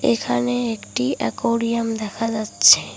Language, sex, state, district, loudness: Bengali, female, West Bengal, Cooch Behar, -20 LUFS